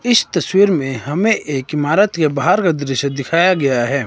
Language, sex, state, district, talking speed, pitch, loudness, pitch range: Hindi, male, Himachal Pradesh, Shimla, 190 wpm, 150 Hz, -16 LUFS, 140-185 Hz